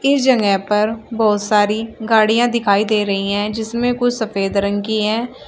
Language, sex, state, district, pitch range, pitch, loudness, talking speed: Hindi, female, Uttar Pradesh, Shamli, 205-230 Hz, 220 Hz, -17 LUFS, 175 wpm